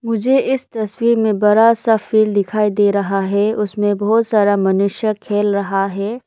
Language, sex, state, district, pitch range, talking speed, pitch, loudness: Hindi, female, Arunachal Pradesh, Lower Dibang Valley, 200-225 Hz, 170 wpm, 210 Hz, -16 LUFS